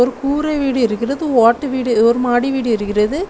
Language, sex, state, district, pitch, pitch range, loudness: Tamil, female, Tamil Nadu, Kanyakumari, 250 Hz, 230-275 Hz, -16 LUFS